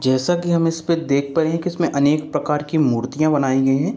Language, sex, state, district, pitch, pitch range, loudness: Hindi, male, Uttar Pradesh, Jalaun, 150 Hz, 140-165 Hz, -19 LUFS